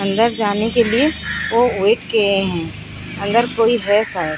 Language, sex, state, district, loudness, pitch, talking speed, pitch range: Hindi, female, Odisha, Sambalpur, -17 LUFS, 220 Hz, 150 wpm, 200-235 Hz